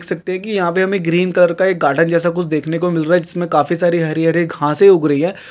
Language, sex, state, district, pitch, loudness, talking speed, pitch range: Hindi, male, Chhattisgarh, Kabirdham, 175 Hz, -15 LUFS, 295 wpm, 165-185 Hz